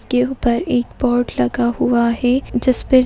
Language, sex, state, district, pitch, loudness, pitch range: Hindi, female, Uttar Pradesh, Etah, 245 Hz, -17 LUFS, 240-250 Hz